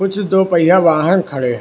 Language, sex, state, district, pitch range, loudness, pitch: Hindi, male, Karnataka, Bangalore, 155-190 Hz, -13 LUFS, 180 Hz